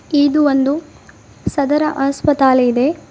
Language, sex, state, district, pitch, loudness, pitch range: Kannada, female, Karnataka, Bidar, 285 Hz, -15 LUFS, 270-295 Hz